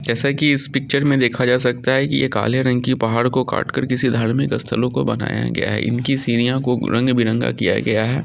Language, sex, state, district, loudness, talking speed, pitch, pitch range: Angika, male, Bihar, Samastipur, -18 LUFS, 225 wpm, 125 Hz, 115-135 Hz